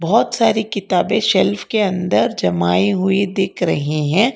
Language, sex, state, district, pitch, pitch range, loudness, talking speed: Hindi, female, Karnataka, Bangalore, 195 Hz, 175-215 Hz, -17 LUFS, 150 wpm